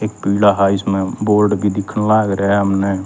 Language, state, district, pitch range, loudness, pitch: Haryanvi, Haryana, Rohtak, 100-105 Hz, -15 LUFS, 100 Hz